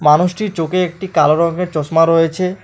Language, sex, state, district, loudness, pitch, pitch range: Bengali, male, West Bengal, Alipurduar, -15 LUFS, 170 Hz, 160-185 Hz